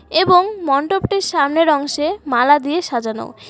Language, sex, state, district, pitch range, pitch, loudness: Bengali, female, West Bengal, Alipurduar, 285-360 Hz, 305 Hz, -16 LUFS